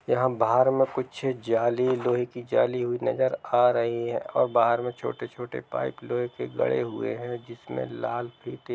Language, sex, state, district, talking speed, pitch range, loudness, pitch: Hindi, male, Bihar, Sitamarhi, 180 wpm, 120-125 Hz, -26 LUFS, 120 Hz